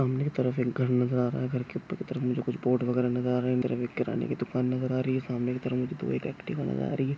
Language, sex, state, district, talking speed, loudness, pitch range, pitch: Hindi, male, Maharashtra, Aurangabad, 350 wpm, -29 LUFS, 125-130 Hz, 125 Hz